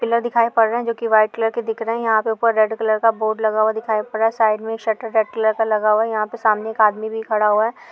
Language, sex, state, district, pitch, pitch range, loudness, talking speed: Hindi, female, Uttar Pradesh, Jyotiba Phule Nagar, 220 Hz, 215-225 Hz, -19 LUFS, 340 wpm